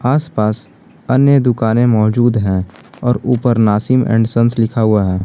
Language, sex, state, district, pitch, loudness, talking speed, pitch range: Hindi, male, Jharkhand, Garhwa, 115 Hz, -14 LUFS, 160 wpm, 105-125 Hz